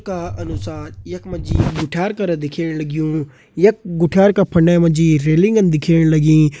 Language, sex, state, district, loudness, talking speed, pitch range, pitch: Kumaoni, male, Uttarakhand, Uttarkashi, -16 LUFS, 145 wpm, 155-175 Hz, 160 Hz